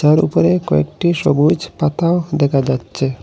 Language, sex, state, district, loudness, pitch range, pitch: Bengali, male, Assam, Hailakandi, -16 LUFS, 125-155 Hz, 145 Hz